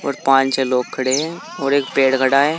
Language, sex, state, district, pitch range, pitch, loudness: Hindi, male, Uttar Pradesh, Saharanpur, 130-140 Hz, 135 Hz, -17 LUFS